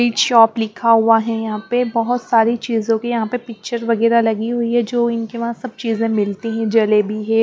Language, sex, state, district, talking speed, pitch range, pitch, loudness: Hindi, female, Punjab, Pathankot, 210 wpm, 225-235 Hz, 230 Hz, -17 LUFS